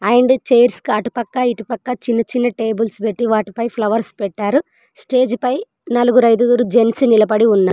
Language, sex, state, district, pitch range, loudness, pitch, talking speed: Telugu, female, Telangana, Mahabubabad, 220-245 Hz, -16 LUFS, 235 Hz, 170 wpm